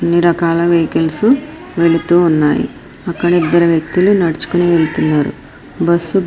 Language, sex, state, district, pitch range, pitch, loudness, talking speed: Telugu, female, Andhra Pradesh, Srikakulam, 165-175 Hz, 170 Hz, -13 LUFS, 115 wpm